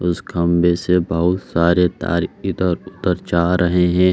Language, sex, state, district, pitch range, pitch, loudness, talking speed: Hindi, male, Bihar, Saran, 85-90 Hz, 90 Hz, -18 LUFS, 160 wpm